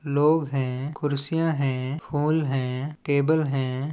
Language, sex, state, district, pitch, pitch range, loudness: Chhattisgarhi, male, Chhattisgarh, Balrampur, 145 Hz, 135-155 Hz, -25 LUFS